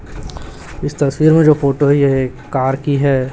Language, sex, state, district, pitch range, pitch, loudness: Hindi, male, Chhattisgarh, Raipur, 135-145 Hz, 140 Hz, -14 LUFS